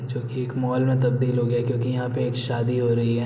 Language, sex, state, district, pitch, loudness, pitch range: Hindi, male, Bihar, Araria, 125 Hz, -24 LUFS, 120-125 Hz